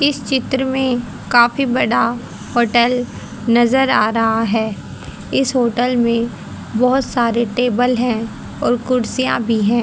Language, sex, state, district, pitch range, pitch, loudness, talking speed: Hindi, female, Haryana, Jhajjar, 230-255 Hz, 240 Hz, -17 LUFS, 130 wpm